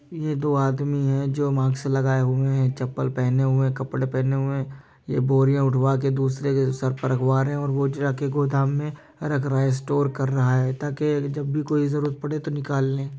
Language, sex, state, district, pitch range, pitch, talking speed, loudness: Hindi, male, Uttar Pradesh, Jyotiba Phule Nagar, 135-145 Hz, 135 Hz, 220 wpm, -23 LUFS